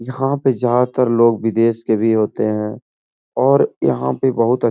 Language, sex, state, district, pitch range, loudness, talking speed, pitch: Hindi, male, Uttar Pradesh, Etah, 110-125 Hz, -17 LUFS, 190 wpm, 115 Hz